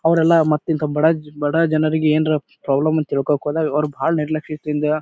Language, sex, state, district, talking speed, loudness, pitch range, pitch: Kannada, male, Karnataka, Bijapur, 190 wpm, -19 LUFS, 150-160 Hz, 155 Hz